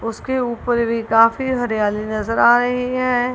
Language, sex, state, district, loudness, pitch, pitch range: Hindi, female, Punjab, Kapurthala, -18 LUFS, 240 Hz, 225-250 Hz